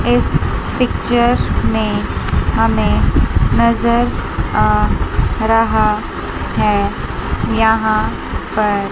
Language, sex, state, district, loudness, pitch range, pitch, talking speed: Hindi, female, Chandigarh, Chandigarh, -16 LUFS, 200-230 Hz, 220 Hz, 75 wpm